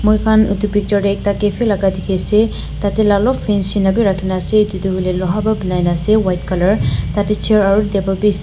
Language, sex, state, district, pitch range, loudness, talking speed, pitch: Nagamese, female, Nagaland, Dimapur, 190-210 Hz, -15 LUFS, 165 wpm, 200 Hz